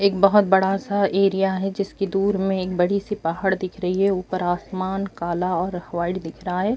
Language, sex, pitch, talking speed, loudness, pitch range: Urdu, female, 190 Hz, 215 wpm, -22 LUFS, 180-195 Hz